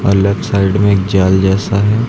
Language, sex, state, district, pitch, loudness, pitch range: Hindi, male, Uttar Pradesh, Lucknow, 100 Hz, -13 LUFS, 95-100 Hz